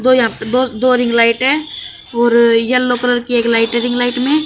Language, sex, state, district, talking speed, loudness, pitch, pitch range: Hindi, male, Haryana, Jhajjar, 240 wpm, -14 LUFS, 245 Hz, 235-255 Hz